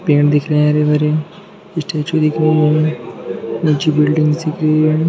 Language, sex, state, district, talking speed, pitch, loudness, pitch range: Hindi, male, Bihar, Darbhanga, 155 wpm, 155 Hz, -15 LUFS, 150-155 Hz